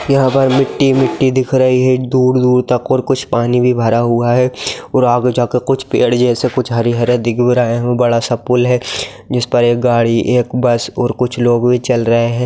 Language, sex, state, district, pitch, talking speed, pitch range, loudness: Hindi, male, Bihar, Saran, 125 Hz, 200 wpm, 120-130 Hz, -13 LUFS